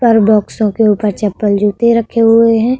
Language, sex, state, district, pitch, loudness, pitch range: Hindi, female, Uttar Pradesh, Budaun, 220 Hz, -12 LUFS, 210-230 Hz